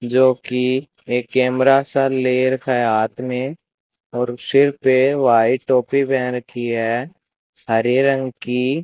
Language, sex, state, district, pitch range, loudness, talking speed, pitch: Hindi, male, Rajasthan, Bikaner, 120-135 Hz, -18 LUFS, 140 wpm, 130 Hz